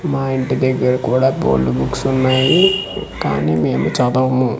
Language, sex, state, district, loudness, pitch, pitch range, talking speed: Telugu, male, Andhra Pradesh, Manyam, -16 LUFS, 130 Hz, 120-130 Hz, 130 wpm